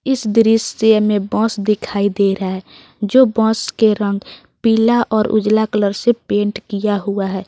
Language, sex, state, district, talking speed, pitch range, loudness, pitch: Hindi, female, Jharkhand, Garhwa, 170 wpm, 200-225 Hz, -16 LUFS, 215 Hz